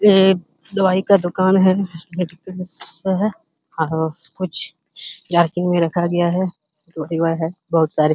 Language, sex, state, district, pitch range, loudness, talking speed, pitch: Hindi, male, Uttar Pradesh, Hamirpur, 165-185 Hz, -19 LUFS, 95 wpm, 175 Hz